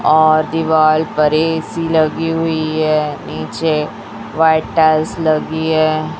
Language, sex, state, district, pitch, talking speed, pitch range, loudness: Hindi, male, Chhattisgarh, Raipur, 155 Hz, 115 wpm, 155-160 Hz, -15 LUFS